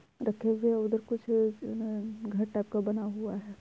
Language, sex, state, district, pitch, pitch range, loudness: Hindi, female, Bihar, Araria, 220 Hz, 210-225 Hz, -32 LUFS